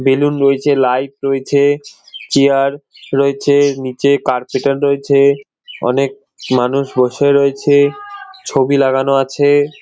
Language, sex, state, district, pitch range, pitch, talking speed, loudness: Bengali, male, West Bengal, North 24 Parganas, 135-140 Hz, 140 Hz, 100 wpm, -14 LUFS